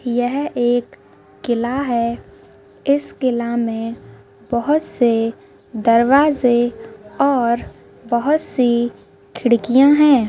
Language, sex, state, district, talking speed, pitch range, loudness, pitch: Hindi, female, Rajasthan, Nagaur, 85 wpm, 230-265 Hz, -17 LUFS, 240 Hz